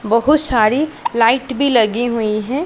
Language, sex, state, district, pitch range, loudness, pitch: Hindi, female, Punjab, Pathankot, 225-280 Hz, -15 LUFS, 240 Hz